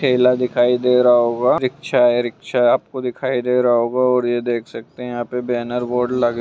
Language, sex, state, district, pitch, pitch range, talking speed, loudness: Hindi, male, Bihar, Purnia, 125 Hz, 120-125 Hz, 185 wpm, -18 LUFS